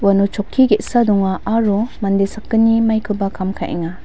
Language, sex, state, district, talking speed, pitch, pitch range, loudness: Garo, female, Meghalaya, West Garo Hills, 150 wpm, 205 Hz, 195-225 Hz, -17 LUFS